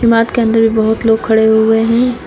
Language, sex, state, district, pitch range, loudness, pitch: Hindi, female, Uttar Pradesh, Shamli, 220-230 Hz, -11 LUFS, 225 Hz